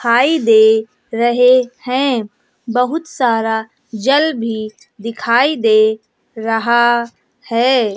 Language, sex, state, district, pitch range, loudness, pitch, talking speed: Hindi, female, Bihar, West Champaran, 220-255 Hz, -14 LUFS, 235 Hz, 75 wpm